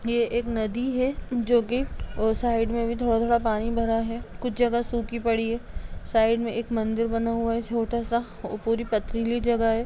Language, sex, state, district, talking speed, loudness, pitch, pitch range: Hindi, female, Chhattisgarh, Kabirdham, 190 wpm, -26 LUFS, 230 Hz, 225-235 Hz